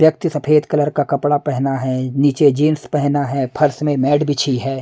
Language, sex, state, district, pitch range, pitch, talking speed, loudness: Hindi, male, Punjab, Pathankot, 135-150 Hz, 145 Hz, 200 wpm, -17 LUFS